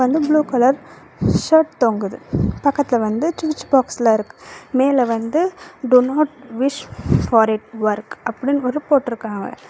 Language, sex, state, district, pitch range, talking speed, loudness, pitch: Tamil, female, Karnataka, Bangalore, 230-290 Hz, 125 wpm, -18 LUFS, 255 Hz